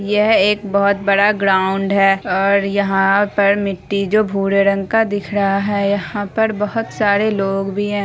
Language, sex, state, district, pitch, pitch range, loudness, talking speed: Hindi, female, Bihar, Araria, 200 Hz, 195-205 Hz, -16 LUFS, 180 wpm